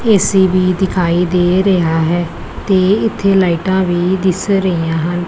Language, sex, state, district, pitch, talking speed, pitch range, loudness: Punjabi, female, Punjab, Pathankot, 185 Hz, 145 wpm, 175-190 Hz, -13 LUFS